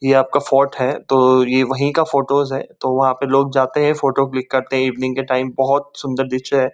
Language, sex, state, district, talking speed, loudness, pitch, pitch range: Hindi, male, West Bengal, Kolkata, 250 wpm, -17 LUFS, 135 Hz, 130-140 Hz